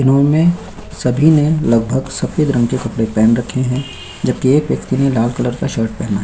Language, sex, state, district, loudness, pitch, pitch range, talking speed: Hindi, male, Chhattisgarh, Kabirdham, -15 LUFS, 130 Hz, 115-140 Hz, 200 wpm